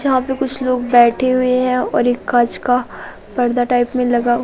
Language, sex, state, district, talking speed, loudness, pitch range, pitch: Hindi, female, Madhya Pradesh, Katni, 190 wpm, -16 LUFS, 245-255 Hz, 245 Hz